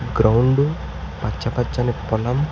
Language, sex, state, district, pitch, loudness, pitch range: Telugu, male, Andhra Pradesh, Sri Satya Sai, 120 Hz, -20 LUFS, 115-130 Hz